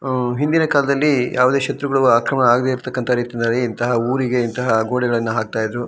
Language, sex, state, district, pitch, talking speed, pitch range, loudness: Kannada, male, Karnataka, Shimoga, 125 Hz, 165 wpm, 120-135 Hz, -18 LUFS